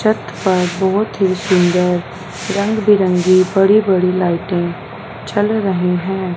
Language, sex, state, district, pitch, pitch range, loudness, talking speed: Hindi, female, Punjab, Fazilka, 185 Hz, 180-200 Hz, -15 LUFS, 115 wpm